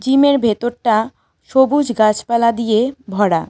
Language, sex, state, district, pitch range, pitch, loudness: Bengali, female, West Bengal, Cooch Behar, 215-265 Hz, 235 Hz, -16 LUFS